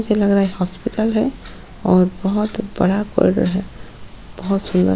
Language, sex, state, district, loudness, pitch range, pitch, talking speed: Hindi, female, Goa, North and South Goa, -18 LUFS, 185-215 Hz, 195 Hz, 155 wpm